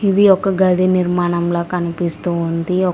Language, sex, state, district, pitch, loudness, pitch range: Telugu, female, Telangana, Mahabubabad, 180 Hz, -16 LUFS, 170-185 Hz